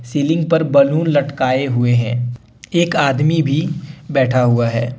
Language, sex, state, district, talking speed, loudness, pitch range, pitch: Hindi, male, Jharkhand, Deoghar, 145 wpm, -16 LUFS, 120-160 Hz, 140 Hz